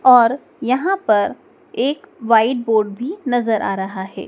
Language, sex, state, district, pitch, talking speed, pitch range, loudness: Hindi, female, Madhya Pradesh, Dhar, 240 Hz, 155 wpm, 220-265 Hz, -18 LUFS